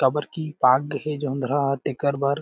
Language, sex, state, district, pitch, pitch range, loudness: Chhattisgarhi, male, Chhattisgarh, Jashpur, 140 Hz, 135-150 Hz, -23 LUFS